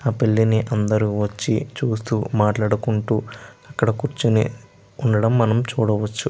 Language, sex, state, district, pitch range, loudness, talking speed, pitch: Telugu, male, Andhra Pradesh, Chittoor, 105-115 Hz, -21 LUFS, 105 wpm, 110 Hz